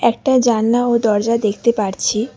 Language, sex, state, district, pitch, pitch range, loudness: Bengali, female, West Bengal, Alipurduar, 230 Hz, 215-235 Hz, -16 LUFS